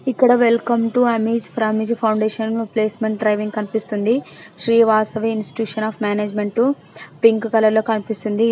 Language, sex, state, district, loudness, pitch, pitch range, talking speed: Telugu, female, Andhra Pradesh, Anantapur, -19 LUFS, 220 Hz, 215-230 Hz, 135 wpm